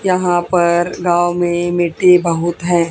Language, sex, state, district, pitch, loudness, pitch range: Hindi, female, Haryana, Charkhi Dadri, 175 Hz, -14 LUFS, 170-175 Hz